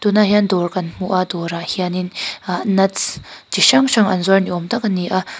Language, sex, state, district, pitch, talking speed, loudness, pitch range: Mizo, female, Mizoram, Aizawl, 185 Hz, 255 wpm, -17 LUFS, 180-205 Hz